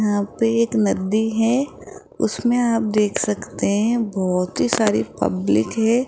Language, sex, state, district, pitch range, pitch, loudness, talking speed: Hindi, female, Rajasthan, Jaipur, 190-230 Hz, 215 Hz, -20 LUFS, 150 wpm